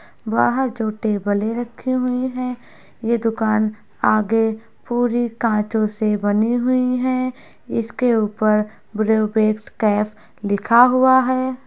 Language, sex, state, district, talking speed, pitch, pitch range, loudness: Hindi, female, Bihar, Muzaffarpur, 120 wpm, 225 Hz, 215-250 Hz, -19 LUFS